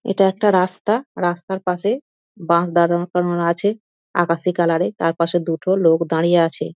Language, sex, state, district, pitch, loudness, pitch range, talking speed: Bengali, female, West Bengal, Dakshin Dinajpur, 175 Hz, -19 LUFS, 170-190 Hz, 140 wpm